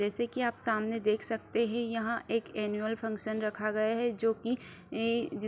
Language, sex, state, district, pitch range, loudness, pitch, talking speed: Hindi, female, Bihar, Supaul, 215-235 Hz, -33 LUFS, 225 Hz, 210 wpm